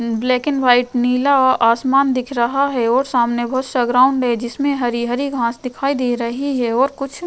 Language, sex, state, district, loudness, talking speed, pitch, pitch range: Hindi, female, Uttar Pradesh, Jyotiba Phule Nagar, -17 LUFS, 215 wpm, 250 Hz, 240-275 Hz